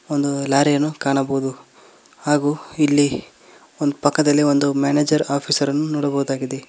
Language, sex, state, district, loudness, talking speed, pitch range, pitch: Kannada, male, Karnataka, Koppal, -19 LUFS, 110 wpm, 140-150 Hz, 145 Hz